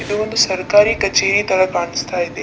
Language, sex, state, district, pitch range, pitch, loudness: Kannada, female, Karnataka, Dakshina Kannada, 175-205 Hz, 190 Hz, -16 LUFS